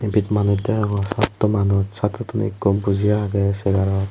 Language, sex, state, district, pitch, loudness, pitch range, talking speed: Chakma, female, Tripura, West Tripura, 100 Hz, -20 LUFS, 100-105 Hz, 160 wpm